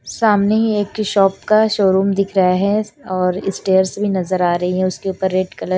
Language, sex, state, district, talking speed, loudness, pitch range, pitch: Hindi, female, Bihar, Katihar, 205 wpm, -17 LUFS, 185-205 Hz, 195 Hz